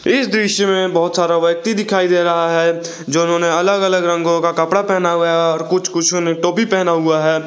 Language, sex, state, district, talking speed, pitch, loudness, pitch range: Hindi, male, Jharkhand, Garhwa, 225 wpm, 170 Hz, -15 LUFS, 170-190 Hz